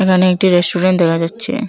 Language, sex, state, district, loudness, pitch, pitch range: Bengali, female, Assam, Hailakandi, -12 LUFS, 185 Hz, 175-190 Hz